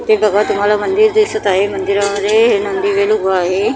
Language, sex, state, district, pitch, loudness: Marathi, female, Maharashtra, Mumbai Suburban, 215 Hz, -14 LUFS